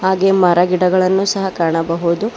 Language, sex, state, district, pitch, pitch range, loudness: Kannada, female, Karnataka, Bangalore, 185 Hz, 175-190 Hz, -15 LUFS